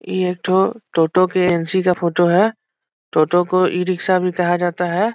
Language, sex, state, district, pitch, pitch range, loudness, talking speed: Hindi, male, Bihar, Saran, 180 Hz, 175-185 Hz, -17 LUFS, 210 wpm